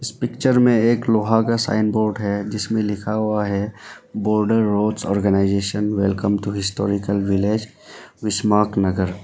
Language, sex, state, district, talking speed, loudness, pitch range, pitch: Hindi, male, Arunachal Pradesh, Lower Dibang Valley, 145 wpm, -20 LUFS, 100-110 Hz, 105 Hz